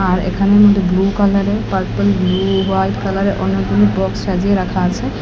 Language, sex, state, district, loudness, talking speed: Bengali, female, Assam, Hailakandi, -15 LUFS, 160 wpm